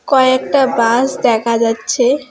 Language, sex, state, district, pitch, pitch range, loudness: Bengali, female, West Bengal, Alipurduar, 255 Hz, 230-265 Hz, -14 LUFS